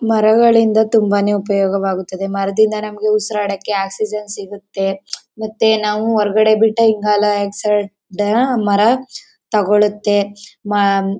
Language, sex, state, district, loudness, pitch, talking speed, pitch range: Kannada, female, Karnataka, Mysore, -15 LUFS, 210 Hz, 90 wpm, 200-220 Hz